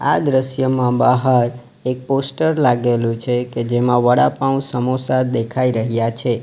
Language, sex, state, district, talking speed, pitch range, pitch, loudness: Gujarati, male, Gujarat, Valsad, 130 wpm, 120-130 Hz, 125 Hz, -17 LUFS